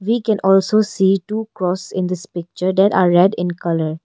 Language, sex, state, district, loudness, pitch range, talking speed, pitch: English, female, Arunachal Pradesh, Longding, -17 LUFS, 175-205 Hz, 190 wpm, 190 Hz